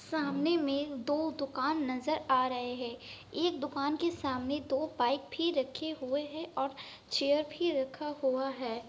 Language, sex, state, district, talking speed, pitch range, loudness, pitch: Hindi, female, Bihar, Kishanganj, 160 wpm, 265-310 Hz, -33 LUFS, 280 Hz